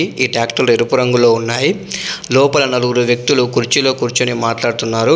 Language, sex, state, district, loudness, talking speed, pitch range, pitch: Telugu, male, Telangana, Adilabad, -14 LUFS, 130 wpm, 115-130 Hz, 120 Hz